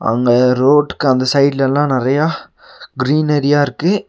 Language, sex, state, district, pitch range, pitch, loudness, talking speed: Tamil, male, Tamil Nadu, Nilgiris, 130-150 Hz, 140 Hz, -14 LUFS, 105 wpm